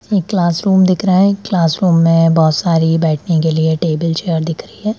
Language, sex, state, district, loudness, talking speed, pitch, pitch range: Hindi, female, Bihar, Darbhanga, -14 LUFS, 205 wpm, 165 Hz, 160-190 Hz